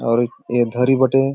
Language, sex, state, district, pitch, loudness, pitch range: Sadri, male, Chhattisgarh, Jashpur, 125 Hz, -18 LUFS, 120-135 Hz